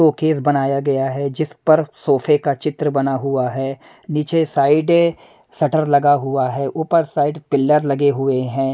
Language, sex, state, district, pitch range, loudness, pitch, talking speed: Hindi, male, Punjab, Pathankot, 135-155 Hz, -18 LUFS, 145 Hz, 180 wpm